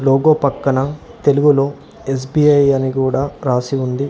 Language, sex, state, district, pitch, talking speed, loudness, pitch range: Telugu, male, Telangana, Hyderabad, 140 Hz, 115 wpm, -16 LUFS, 135-145 Hz